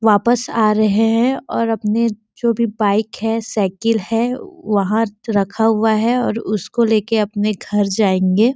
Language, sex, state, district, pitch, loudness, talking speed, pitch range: Hindi, female, Chhattisgarh, Sarguja, 220 Hz, -17 LUFS, 155 wpm, 210-230 Hz